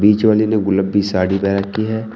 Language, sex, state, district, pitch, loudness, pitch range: Hindi, male, Uttar Pradesh, Shamli, 100 Hz, -16 LUFS, 100-110 Hz